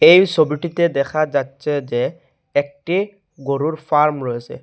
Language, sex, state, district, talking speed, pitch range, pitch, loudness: Bengali, male, Assam, Hailakandi, 130 wpm, 140-170 Hz, 150 Hz, -19 LUFS